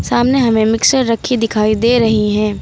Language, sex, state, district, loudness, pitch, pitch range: Hindi, female, Uttar Pradesh, Lucknow, -13 LUFS, 225 Hz, 215-240 Hz